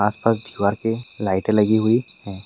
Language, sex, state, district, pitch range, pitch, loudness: Hindi, male, Bihar, Supaul, 100-115 Hz, 110 Hz, -21 LUFS